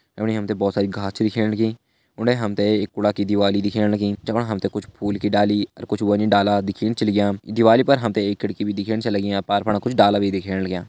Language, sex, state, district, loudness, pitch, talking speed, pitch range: Hindi, male, Uttarakhand, Tehri Garhwal, -21 LUFS, 105 Hz, 280 wpm, 100-110 Hz